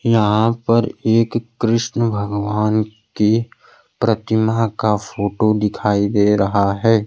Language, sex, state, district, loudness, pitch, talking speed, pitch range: Hindi, male, Bihar, Kaimur, -18 LUFS, 110 Hz, 110 wpm, 105-115 Hz